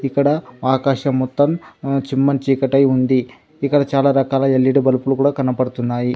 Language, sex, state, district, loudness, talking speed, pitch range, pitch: Telugu, male, Telangana, Adilabad, -17 LUFS, 125 wpm, 130-140 Hz, 135 Hz